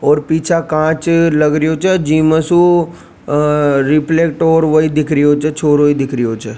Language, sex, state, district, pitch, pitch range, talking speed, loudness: Rajasthani, male, Rajasthan, Nagaur, 155 Hz, 145-160 Hz, 130 wpm, -13 LUFS